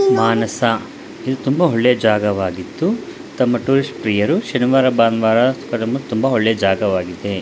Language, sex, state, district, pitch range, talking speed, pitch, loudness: Kannada, male, Karnataka, Dakshina Kannada, 105-130 Hz, 115 wpm, 115 Hz, -17 LUFS